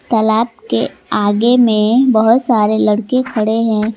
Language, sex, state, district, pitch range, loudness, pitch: Hindi, female, Jharkhand, Garhwa, 215-240 Hz, -13 LUFS, 225 Hz